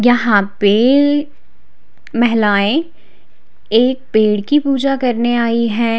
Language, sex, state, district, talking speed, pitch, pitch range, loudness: Hindi, female, Odisha, Khordha, 100 wpm, 240 Hz, 220-275 Hz, -14 LUFS